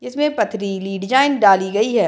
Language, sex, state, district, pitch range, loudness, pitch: Hindi, female, Bihar, Muzaffarpur, 195-265 Hz, -17 LUFS, 215 Hz